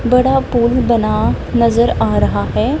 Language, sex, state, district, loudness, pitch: Hindi, female, Punjab, Kapurthala, -14 LUFS, 235 Hz